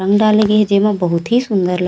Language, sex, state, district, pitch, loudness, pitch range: Chhattisgarhi, female, Chhattisgarh, Raigarh, 200 Hz, -14 LUFS, 180-215 Hz